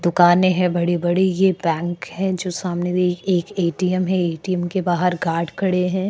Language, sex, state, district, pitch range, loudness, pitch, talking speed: Hindi, female, Uttar Pradesh, Hamirpur, 175-185 Hz, -20 LUFS, 180 Hz, 175 wpm